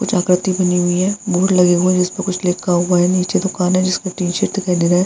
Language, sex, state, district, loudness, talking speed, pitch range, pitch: Hindi, female, Bihar, Vaishali, -16 LUFS, 295 wpm, 180-185 Hz, 180 Hz